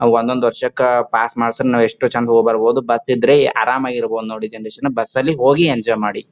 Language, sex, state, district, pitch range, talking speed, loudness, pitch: Kannada, male, Karnataka, Gulbarga, 115-125 Hz, 200 wpm, -16 LUFS, 115 Hz